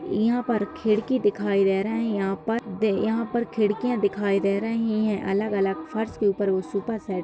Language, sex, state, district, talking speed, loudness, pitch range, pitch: Hindi, female, Bihar, Bhagalpur, 190 wpm, -25 LUFS, 195-225 Hz, 210 Hz